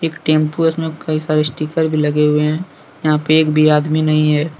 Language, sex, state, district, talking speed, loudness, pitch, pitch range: Hindi, male, Jharkhand, Deoghar, 220 wpm, -16 LUFS, 155 Hz, 150-160 Hz